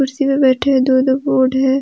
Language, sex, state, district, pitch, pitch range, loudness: Hindi, female, Jharkhand, Deoghar, 265 Hz, 260-275 Hz, -14 LUFS